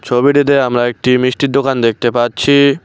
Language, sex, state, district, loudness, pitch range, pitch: Bengali, male, West Bengal, Cooch Behar, -13 LUFS, 120-140 Hz, 125 Hz